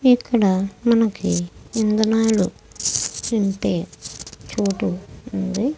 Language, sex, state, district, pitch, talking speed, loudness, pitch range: Telugu, female, Andhra Pradesh, Krishna, 210 Hz, 60 wpm, -21 LUFS, 190-225 Hz